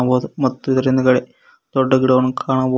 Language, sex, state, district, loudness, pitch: Kannada, male, Karnataka, Koppal, -17 LUFS, 130 Hz